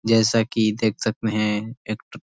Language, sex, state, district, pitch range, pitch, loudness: Hindi, male, Uttar Pradesh, Ghazipur, 105-115 Hz, 110 Hz, -22 LUFS